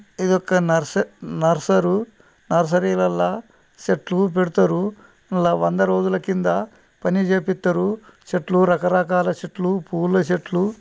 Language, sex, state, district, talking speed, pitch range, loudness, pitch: Telugu, male, Telangana, Nalgonda, 95 wpm, 170-190 Hz, -20 LUFS, 180 Hz